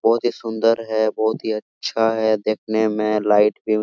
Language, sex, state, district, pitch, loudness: Hindi, male, Jharkhand, Sahebganj, 110 Hz, -20 LUFS